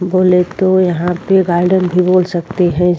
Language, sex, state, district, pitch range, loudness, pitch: Hindi, female, Goa, North and South Goa, 175-185 Hz, -13 LUFS, 180 Hz